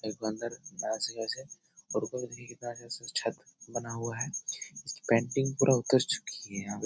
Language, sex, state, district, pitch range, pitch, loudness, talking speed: Hindi, male, Bihar, Jahanabad, 115-130 Hz, 120 Hz, -33 LUFS, 140 wpm